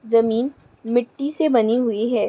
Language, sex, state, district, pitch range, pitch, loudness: Hindi, female, Goa, North and South Goa, 230-255 Hz, 235 Hz, -20 LUFS